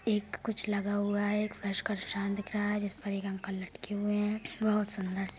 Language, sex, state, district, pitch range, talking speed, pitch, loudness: Hindi, female, Jharkhand, Sahebganj, 195-210 Hz, 200 wpm, 205 Hz, -33 LUFS